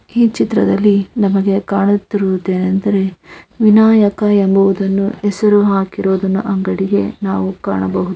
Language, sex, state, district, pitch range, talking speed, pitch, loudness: Kannada, female, Karnataka, Mysore, 190-205 Hz, 105 wpm, 195 Hz, -14 LUFS